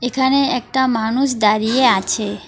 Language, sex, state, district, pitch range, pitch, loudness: Bengali, female, West Bengal, Alipurduar, 215-260 Hz, 245 Hz, -16 LUFS